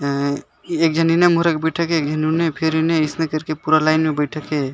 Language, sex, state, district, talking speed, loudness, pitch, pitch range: Sadri, male, Chhattisgarh, Jashpur, 305 wpm, -18 LUFS, 155 Hz, 155-165 Hz